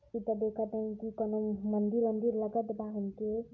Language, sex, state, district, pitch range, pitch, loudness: Hindi, male, Uttar Pradesh, Varanasi, 215-225 Hz, 220 Hz, -34 LUFS